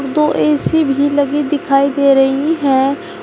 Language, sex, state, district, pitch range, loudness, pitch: Hindi, female, Uttar Pradesh, Shamli, 275-300 Hz, -14 LUFS, 280 Hz